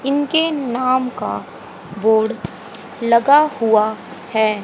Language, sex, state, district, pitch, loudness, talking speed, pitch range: Hindi, female, Haryana, Rohtak, 235 Hz, -17 LUFS, 90 wpm, 220-275 Hz